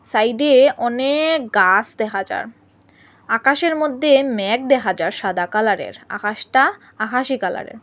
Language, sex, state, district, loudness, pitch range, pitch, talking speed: Bengali, female, Assam, Hailakandi, -17 LUFS, 195-270 Hz, 225 Hz, 115 wpm